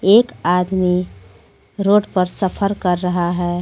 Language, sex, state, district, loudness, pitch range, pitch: Hindi, female, Jharkhand, Garhwa, -18 LUFS, 175-200 Hz, 180 Hz